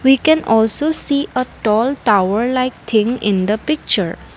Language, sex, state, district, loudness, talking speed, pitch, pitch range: English, female, Assam, Kamrup Metropolitan, -16 LUFS, 165 wpm, 245 Hz, 215-280 Hz